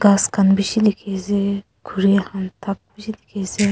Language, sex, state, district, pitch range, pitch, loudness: Nagamese, female, Nagaland, Kohima, 195-205 Hz, 200 Hz, -20 LUFS